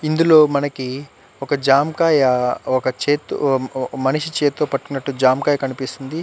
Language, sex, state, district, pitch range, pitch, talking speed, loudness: Telugu, male, Andhra Pradesh, Chittoor, 130-145 Hz, 140 Hz, 115 wpm, -18 LUFS